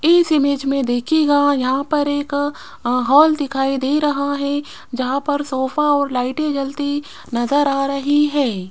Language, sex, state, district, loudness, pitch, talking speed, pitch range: Hindi, female, Rajasthan, Jaipur, -18 LUFS, 285 Hz, 150 wpm, 270-290 Hz